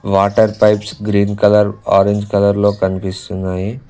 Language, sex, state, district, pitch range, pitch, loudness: Telugu, male, Telangana, Mahabubabad, 95-105 Hz, 100 Hz, -15 LUFS